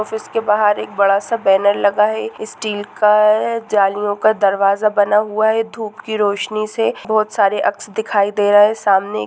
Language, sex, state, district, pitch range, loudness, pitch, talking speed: Hindi, female, Jharkhand, Jamtara, 200-220 Hz, -16 LUFS, 210 Hz, 195 wpm